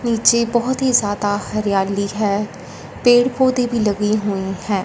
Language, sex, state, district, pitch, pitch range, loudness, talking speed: Hindi, female, Punjab, Fazilka, 210 Hz, 200-240 Hz, -18 LUFS, 150 wpm